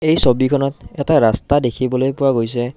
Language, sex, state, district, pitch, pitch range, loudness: Assamese, male, Assam, Kamrup Metropolitan, 135 Hz, 125-140 Hz, -16 LUFS